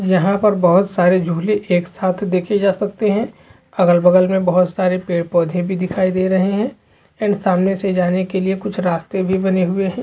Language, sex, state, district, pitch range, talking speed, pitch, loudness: Hindi, male, Chhattisgarh, Bastar, 180-195 Hz, 210 wpm, 185 Hz, -17 LUFS